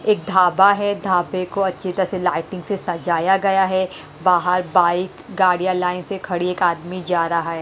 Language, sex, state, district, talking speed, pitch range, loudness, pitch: Hindi, female, Haryana, Rohtak, 190 wpm, 175-190 Hz, -19 LUFS, 185 Hz